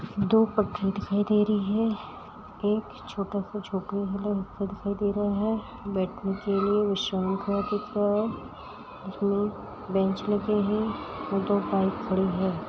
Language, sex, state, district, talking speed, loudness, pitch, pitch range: Hindi, female, Uttar Pradesh, Etah, 140 wpm, -28 LUFS, 205 Hz, 195-210 Hz